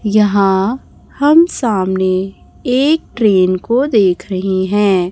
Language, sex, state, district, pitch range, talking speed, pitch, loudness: Hindi, male, Chhattisgarh, Raipur, 190-240 Hz, 105 wpm, 205 Hz, -14 LUFS